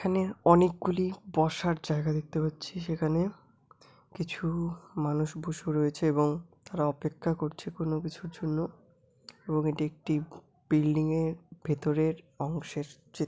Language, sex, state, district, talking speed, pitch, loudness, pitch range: Bengali, male, West Bengal, Jalpaiguri, 115 wpm, 160 Hz, -31 LUFS, 150-170 Hz